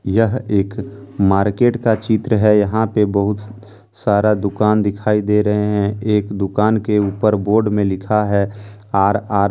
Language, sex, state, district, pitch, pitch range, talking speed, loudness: Hindi, male, Jharkhand, Deoghar, 105 Hz, 100-110 Hz, 165 wpm, -17 LUFS